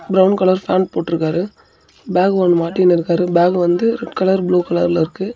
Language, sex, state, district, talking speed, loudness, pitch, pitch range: Tamil, male, Tamil Nadu, Namakkal, 155 wpm, -16 LUFS, 180 Hz, 175-190 Hz